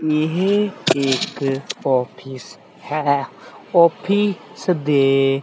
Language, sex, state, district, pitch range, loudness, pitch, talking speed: Punjabi, male, Punjab, Kapurthala, 135-180 Hz, -19 LUFS, 145 Hz, 65 wpm